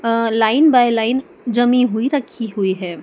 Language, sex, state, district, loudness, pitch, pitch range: Hindi, female, Madhya Pradesh, Dhar, -16 LUFS, 235 Hz, 220-250 Hz